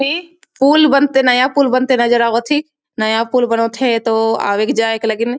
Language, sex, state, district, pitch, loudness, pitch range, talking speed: Sadri, female, Chhattisgarh, Jashpur, 245 Hz, -14 LUFS, 230-275 Hz, 200 wpm